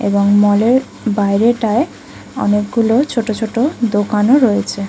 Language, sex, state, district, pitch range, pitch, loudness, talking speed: Bengali, female, West Bengal, Kolkata, 205-240 Hz, 220 Hz, -14 LUFS, 125 wpm